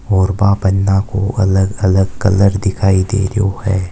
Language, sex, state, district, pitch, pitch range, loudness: Marwari, male, Rajasthan, Nagaur, 95 Hz, 95-100 Hz, -14 LUFS